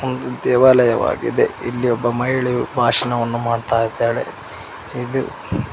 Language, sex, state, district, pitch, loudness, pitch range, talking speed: Kannada, male, Karnataka, Koppal, 125 Hz, -18 LUFS, 115-125 Hz, 95 wpm